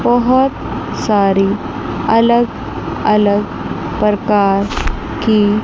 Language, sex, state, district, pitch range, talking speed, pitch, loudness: Hindi, female, Chandigarh, Chandigarh, 205-235 Hz, 65 wpm, 210 Hz, -15 LUFS